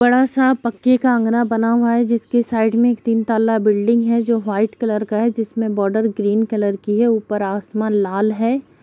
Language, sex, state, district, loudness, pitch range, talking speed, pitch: Hindi, female, Chhattisgarh, Sukma, -17 LUFS, 215-235 Hz, 210 wpm, 225 Hz